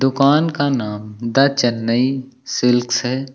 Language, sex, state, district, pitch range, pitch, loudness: Hindi, male, Uttar Pradesh, Lucknow, 120-135 Hz, 130 Hz, -18 LUFS